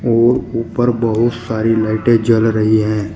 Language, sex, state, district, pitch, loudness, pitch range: Hindi, male, Uttar Pradesh, Shamli, 115 Hz, -15 LUFS, 110-120 Hz